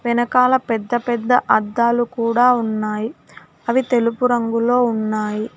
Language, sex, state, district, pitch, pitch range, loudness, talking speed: Telugu, female, Telangana, Hyderabad, 235 Hz, 225-245 Hz, -18 LUFS, 110 wpm